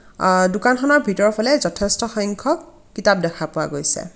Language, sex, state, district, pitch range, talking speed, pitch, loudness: Assamese, female, Assam, Kamrup Metropolitan, 185-250 Hz, 130 wpm, 205 Hz, -19 LUFS